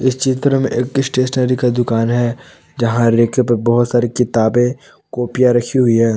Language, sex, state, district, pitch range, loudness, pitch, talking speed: Hindi, male, Jharkhand, Palamu, 120-130 Hz, -15 LUFS, 120 Hz, 165 wpm